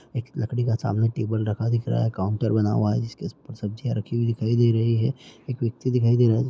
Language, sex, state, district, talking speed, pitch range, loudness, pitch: Maithili, male, Bihar, Araria, 250 wpm, 110-120 Hz, -24 LUFS, 115 Hz